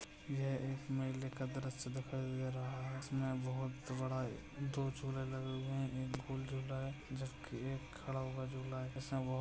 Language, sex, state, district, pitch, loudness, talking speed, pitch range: Hindi, male, Maharashtra, Chandrapur, 130 Hz, -43 LUFS, 190 wpm, 130-135 Hz